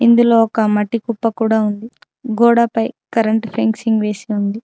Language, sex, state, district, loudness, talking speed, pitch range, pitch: Telugu, female, Telangana, Mahabubabad, -16 LUFS, 155 wpm, 220-235 Hz, 225 Hz